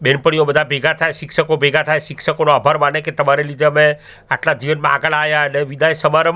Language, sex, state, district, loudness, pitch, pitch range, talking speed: Gujarati, male, Gujarat, Gandhinagar, -15 LUFS, 150 Hz, 145-160 Hz, 200 wpm